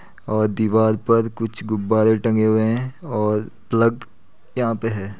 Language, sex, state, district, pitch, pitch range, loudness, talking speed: Hindi, male, Uttar Pradesh, Muzaffarnagar, 110 Hz, 110-115 Hz, -20 LUFS, 150 wpm